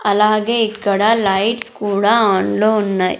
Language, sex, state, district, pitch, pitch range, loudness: Telugu, female, Andhra Pradesh, Sri Satya Sai, 210 Hz, 200-225 Hz, -15 LUFS